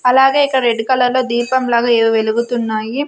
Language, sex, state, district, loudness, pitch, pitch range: Telugu, female, Andhra Pradesh, Sri Satya Sai, -14 LUFS, 240 Hz, 230-260 Hz